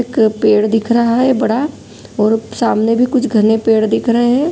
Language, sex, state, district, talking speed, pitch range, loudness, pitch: Angika, female, Bihar, Supaul, 200 wpm, 220-245 Hz, -14 LUFS, 230 Hz